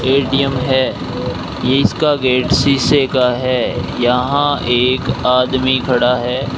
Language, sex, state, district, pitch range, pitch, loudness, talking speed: Hindi, male, Rajasthan, Bikaner, 125-135 Hz, 130 Hz, -15 LUFS, 120 wpm